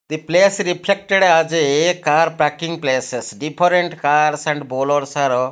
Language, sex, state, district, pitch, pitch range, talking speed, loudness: English, male, Odisha, Malkangiri, 155 Hz, 145-175 Hz, 130 wpm, -17 LUFS